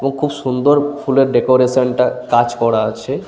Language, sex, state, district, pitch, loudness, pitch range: Bengali, male, West Bengal, Paschim Medinipur, 130 Hz, -15 LUFS, 120-135 Hz